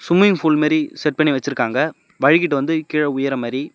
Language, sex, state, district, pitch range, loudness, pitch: Tamil, male, Tamil Nadu, Namakkal, 140-160 Hz, -18 LUFS, 150 Hz